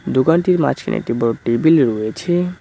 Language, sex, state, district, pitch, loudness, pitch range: Bengali, male, West Bengal, Cooch Behar, 160 Hz, -17 LUFS, 115-175 Hz